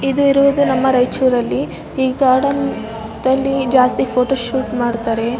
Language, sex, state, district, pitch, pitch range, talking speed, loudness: Kannada, male, Karnataka, Raichur, 260 Hz, 240-270 Hz, 120 wpm, -16 LUFS